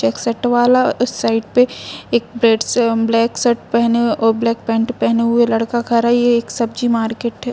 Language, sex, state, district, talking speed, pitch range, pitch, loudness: Hindi, female, Jharkhand, Jamtara, 190 wpm, 230-240 Hz, 235 Hz, -16 LUFS